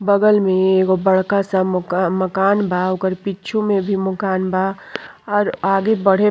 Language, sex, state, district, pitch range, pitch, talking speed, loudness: Bhojpuri, female, Uttar Pradesh, Gorakhpur, 185-200 Hz, 195 Hz, 160 wpm, -17 LUFS